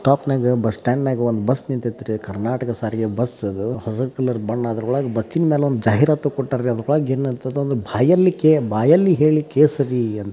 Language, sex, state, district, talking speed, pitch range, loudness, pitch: Kannada, male, Karnataka, Dharwad, 150 wpm, 115-140 Hz, -19 LUFS, 125 Hz